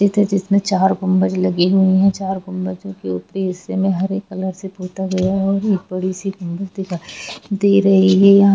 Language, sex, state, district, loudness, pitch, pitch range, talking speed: Hindi, female, Jharkhand, Jamtara, -17 LUFS, 190 Hz, 185-195 Hz, 210 wpm